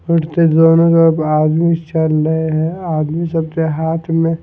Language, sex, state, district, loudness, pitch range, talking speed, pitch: Hindi, male, Punjab, Fazilka, -14 LUFS, 160-165 Hz, 165 wpm, 165 Hz